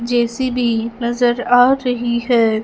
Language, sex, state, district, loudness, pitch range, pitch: Hindi, female, Punjab, Fazilka, -16 LUFS, 235-245 Hz, 240 Hz